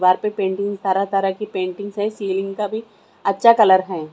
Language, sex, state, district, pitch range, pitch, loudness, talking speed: Hindi, female, Maharashtra, Mumbai Suburban, 190-210 Hz, 195 Hz, -19 LUFS, 175 wpm